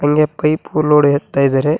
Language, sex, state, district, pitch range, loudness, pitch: Kannada, male, Karnataka, Koppal, 140-155 Hz, -14 LUFS, 150 Hz